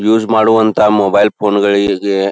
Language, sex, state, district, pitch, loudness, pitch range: Kannada, male, Karnataka, Belgaum, 105 Hz, -12 LUFS, 100-110 Hz